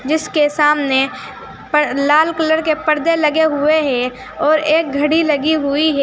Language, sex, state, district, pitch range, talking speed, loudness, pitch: Hindi, female, Uttar Pradesh, Saharanpur, 285-315 Hz, 160 wpm, -15 LUFS, 305 Hz